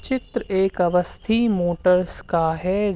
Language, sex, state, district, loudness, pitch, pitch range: Hindi, male, Uttar Pradesh, Hamirpur, -21 LUFS, 185 Hz, 175-220 Hz